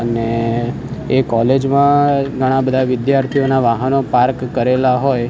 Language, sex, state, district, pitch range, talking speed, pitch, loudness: Gujarati, male, Gujarat, Gandhinagar, 120-135 Hz, 135 wpm, 130 Hz, -15 LUFS